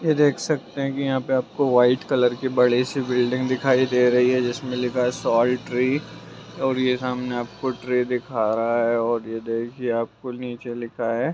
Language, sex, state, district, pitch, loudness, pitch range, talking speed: Hindi, male, Bihar, Purnia, 125 Hz, -22 LUFS, 120-130 Hz, 200 wpm